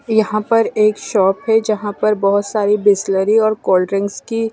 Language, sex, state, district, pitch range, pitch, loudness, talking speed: Hindi, female, Punjab, Kapurthala, 200-220 Hz, 210 Hz, -16 LUFS, 170 wpm